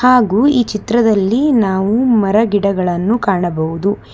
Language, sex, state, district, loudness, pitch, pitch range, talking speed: Kannada, female, Karnataka, Bangalore, -14 LUFS, 210 Hz, 195-240 Hz, 85 wpm